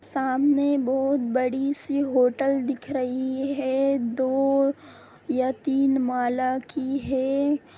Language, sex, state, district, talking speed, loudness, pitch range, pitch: Hindi, female, Bihar, Sitamarhi, 110 wpm, -24 LUFS, 260-275 Hz, 270 Hz